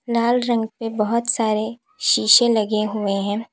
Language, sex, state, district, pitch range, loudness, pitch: Hindi, female, Uttar Pradesh, Lalitpur, 215-235 Hz, -19 LUFS, 225 Hz